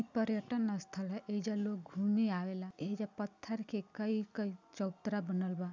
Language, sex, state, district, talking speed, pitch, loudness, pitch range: Bhojpuri, female, Bihar, Gopalganj, 155 wpm, 205 Hz, -38 LUFS, 190-215 Hz